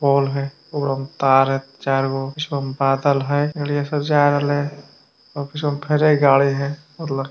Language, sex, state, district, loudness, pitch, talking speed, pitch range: Hindi, male, Bihar, Jamui, -20 LUFS, 140 Hz, 180 wpm, 135-145 Hz